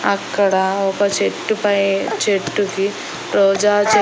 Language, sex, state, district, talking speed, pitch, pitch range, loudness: Telugu, female, Andhra Pradesh, Annamaya, 120 wpm, 200 Hz, 195-205 Hz, -17 LUFS